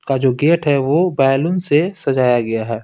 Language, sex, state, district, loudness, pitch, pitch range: Hindi, male, Bihar, Patna, -16 LUFS, 135 Hz, 130-165 Hz